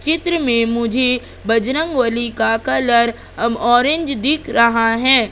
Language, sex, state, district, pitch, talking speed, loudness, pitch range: Hindi, female, Madhya Pradesh, Katni, 240 Hz, 115 wpm, -16 LUFS, 230-265 Hz